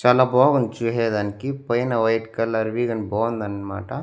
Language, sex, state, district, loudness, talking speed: Telugu, male, Andhra Pradesh, Annamaya, -22 LUFS, 135 wpm